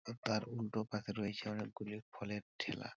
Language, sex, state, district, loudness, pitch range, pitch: Bengali, male, West Bengal, Purulia, -42 LUFS, 105-110 Hz, 105 Hz